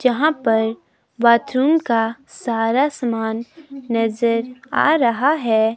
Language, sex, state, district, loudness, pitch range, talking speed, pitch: Hindi, female, Himachal Pradesh, Shimla, -19 LUFS, 225-275 Hz, 105 wpm, 235 Hz